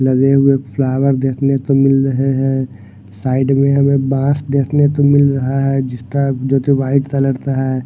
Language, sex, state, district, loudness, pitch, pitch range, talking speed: Hindi, male, Bihar, Katihar, -14 LUFS, 135 Hz, 130-140 Hz, 175 wpm